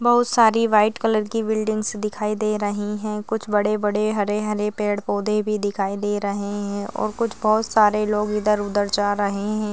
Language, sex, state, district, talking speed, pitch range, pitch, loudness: Hindi, female, Chhattisgarh, Balrampur, 195 wpm, 205-215 Hz, 210 Hz, -21 LUFS